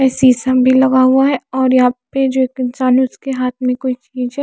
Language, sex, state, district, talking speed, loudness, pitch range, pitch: Hindi, female, Maharashtra, Mumbai Suburban, 255 wpm, -14 LUFS, 255-265 Hz, 255 Hz